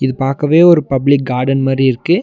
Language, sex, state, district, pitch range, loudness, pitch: Tamil, male, Tamil Nadu, Nilgiris, 135-150 Hz, -12 LUFS, 135 Hz